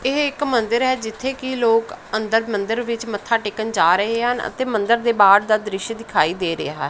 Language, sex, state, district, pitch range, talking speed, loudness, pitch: Punjabi, female, Punjab, Pathankot, 210-240 Hz, 210 wpm, -19 LUFS, 225 Hz